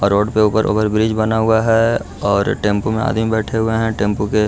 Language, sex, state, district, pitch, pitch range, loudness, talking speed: Hindi, male, Bihar, Gaya, 110 Hz, 105-110 Hz, -16 LUFS, 255 wpm